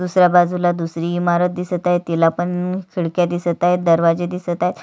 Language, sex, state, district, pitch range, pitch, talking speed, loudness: Marathi, female, Maharashtra, Sindhudurg, 170-180 Hz, 175 Hz, 185 wpm, -18 LUFS